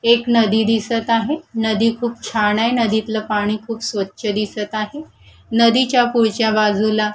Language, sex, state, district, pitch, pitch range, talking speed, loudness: Marathi, female, Maharashtra, Gondia, 225 Hz, 215-235 Hz, 150 wpm, -18 LUFS